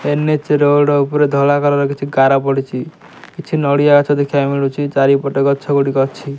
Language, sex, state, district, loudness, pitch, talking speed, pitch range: Odia, male, Odisha, Nuapada, -14 LUFS, 140 Hz, 150 wpm, 140-145 Hz